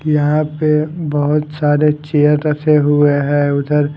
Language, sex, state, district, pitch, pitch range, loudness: Hindi, male, Haryana, Rohtak, 150 Hz, 145-150 Hz, -14 LUFS